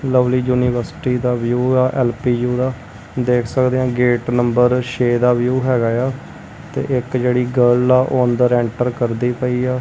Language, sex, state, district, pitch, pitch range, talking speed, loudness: Punjabi, male, Punjab, Kapurthala, 125 Hz, 120-125 Hz, 170 wpm, -17 LUFS